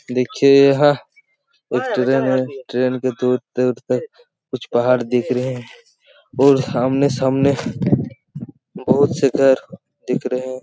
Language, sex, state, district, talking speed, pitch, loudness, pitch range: Hindi, male, Chhattisgarh, Raigarh, 130 wpm, 130 Hz, -18 LUFS, 125-140 Hz